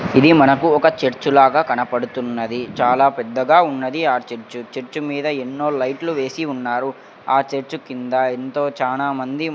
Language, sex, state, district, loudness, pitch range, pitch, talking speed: Telugu, male, Andhra Pradesh, Sri Satya Sai, -18 LUFS, 125-145 Hz, 135 Hz, 145 wpm